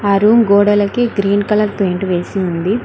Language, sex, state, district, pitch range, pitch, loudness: Telugu, female, Telangana, Mahabubabad, 195-210 Hz, 200 Hz, -14 LUFS